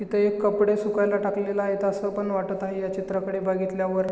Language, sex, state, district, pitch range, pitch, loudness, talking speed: Marathi, male, Maharashtra, Chandrapur, 190-205 Hz, 200 Hz, -25 LUFS, 205 wpm